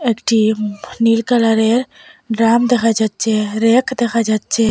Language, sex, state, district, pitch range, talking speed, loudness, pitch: Bengali, female, Assam, Hailakandi, 220-240 Hz, 125 wpm, -15 LUFS, 230 Hz